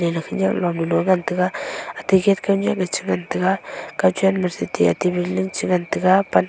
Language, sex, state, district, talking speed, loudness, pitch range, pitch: Wancho, female, Arunachal Pradesh, Longding, 100 wpm, -20 LUFS, 175-190 Hz, 180 Hz